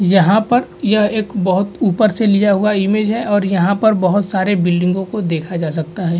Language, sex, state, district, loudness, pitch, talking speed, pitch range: Hindi, male, Bihar, Vaishali, -15 LUFS, 200 Hz, 215 wpm, 185-210 Hz